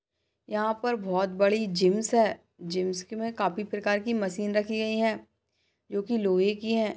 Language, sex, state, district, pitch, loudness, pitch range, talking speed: Hindi, female, Uttar Pradesh, Budaun, 205 Hz, -28 LUFS, 185-220 Hz, 155 wpm